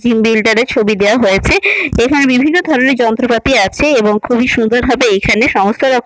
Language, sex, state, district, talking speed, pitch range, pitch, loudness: Bengali, female, West Bengal, Malda, 170 wpm, 225-270 Hz, 240 Hz, -11 LUFS